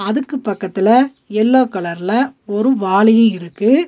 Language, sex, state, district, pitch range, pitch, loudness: Tamil, female, Tamil Nadu, Nilgiris, 195-260 Hz, 225 Hz, -15 LUFS